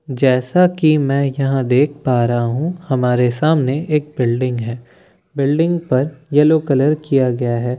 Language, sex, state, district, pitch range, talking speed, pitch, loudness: Hindi, male, Bihar, Katihar, 125-150 Hz, 160 wpm, 135 Hz, -16 LUFS